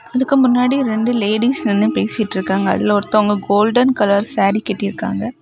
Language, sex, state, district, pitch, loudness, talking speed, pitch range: Tamil, female, Tamil Nadu, Kanyakumari, 215 Hz, -16 LUFS, 130 wpm, 205-245 Hz